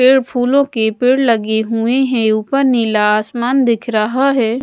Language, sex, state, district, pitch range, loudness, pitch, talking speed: Hindi, female, Odisha, Malkangiri, 220-260 Hz, -14 LUFS, 240 Hz, 170 wpm